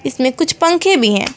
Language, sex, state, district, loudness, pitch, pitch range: Hindi, female, West Bengal, Alipurduar, -13 LUFS, 295 Hz, 255-335 Hz